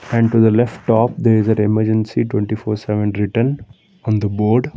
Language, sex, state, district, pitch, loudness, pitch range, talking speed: English, male, Karnataka, Bangalore, 110 Hz, -17 LUFS, 105-120 Hz, 200 wpm